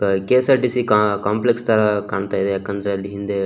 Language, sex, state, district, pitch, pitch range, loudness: Kannada, male, Karnataka, Shimoga, 100 Hz, 100-115 Hz, -19 LUFS